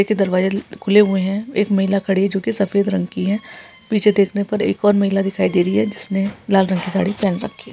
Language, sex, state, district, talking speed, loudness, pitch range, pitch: Hindi, male, Uttarakhand, Tehri Garhwal, 250 wpm, -18 LUFS, 195-205 Hz, 200 Hz